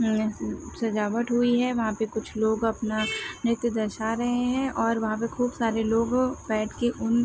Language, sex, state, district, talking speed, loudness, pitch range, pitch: Hindi, female, Uttar Pradesh, Varanasi, 180 wpm, -26 LUFS, 220-240 Hz, 230 Hz